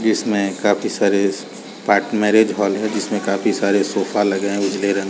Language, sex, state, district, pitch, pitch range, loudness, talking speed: Hindi, male, Chhattisgarh, Balrampur, 100 Hz, 100-105 Hz, -18 LUFS, 140 wpm